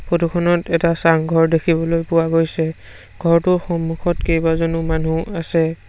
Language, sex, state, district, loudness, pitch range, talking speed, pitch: Assamese, male, Assam, Sonitpur, -18 LUFS, 165-170 Hz, 120 wpm, 165 Hz